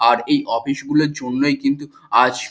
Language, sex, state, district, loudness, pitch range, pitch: Bengali, male, West Bengal, Kolkata, -19 LUFS, 125-145 Hz, 140 Hz